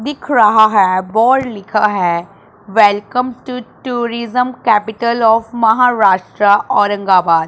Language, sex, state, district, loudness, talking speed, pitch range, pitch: Hindi, male, Punjab, Pathankot, -13 LUFS, 110 wpm, 200-240 Hz, 220 Hz